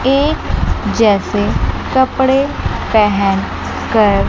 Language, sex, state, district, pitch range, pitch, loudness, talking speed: Hindi, female, Chandigarh, Chandigarh, 205-265 Hz, 225 Hz, -15 LUFS, 70 wpm